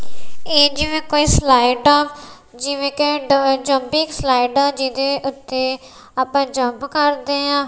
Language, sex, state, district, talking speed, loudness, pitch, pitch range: Punjabi, female, Punjab, Kapurthala, 135 wpm, -17 LUFS, 280 Hz, 265-290 Hz